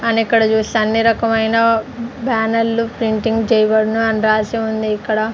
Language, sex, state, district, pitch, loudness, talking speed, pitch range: Telugu, female, Andhra Pradesh, Sri Satya Sai, 225 Hz, -16 LUFS, 135 wpm, 220-230 Hz